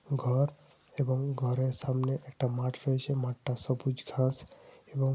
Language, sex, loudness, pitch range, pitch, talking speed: Bengali, male, -32 LUFS, 130-140 Hz, 130 Hz, 140 wpm